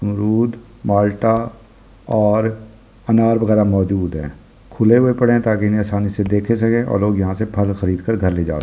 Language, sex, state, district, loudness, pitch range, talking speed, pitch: Hindi, male, Delhi, New Delhi, -17 LUFS, 100-115 Hz, 200 wpm, 110 Hz